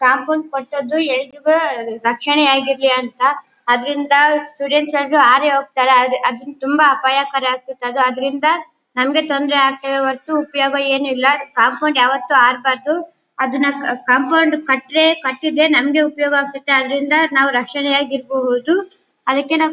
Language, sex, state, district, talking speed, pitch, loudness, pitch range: Kannada, female, Karnataka, Bellary, 135 wpm, 275 Hz, -15 LUFS, 265-295 Hz